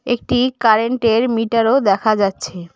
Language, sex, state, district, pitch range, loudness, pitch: Bengali, female, West Bengal, Cooch Behar, 205-245 Hz, -16 LUFS, 225 Hz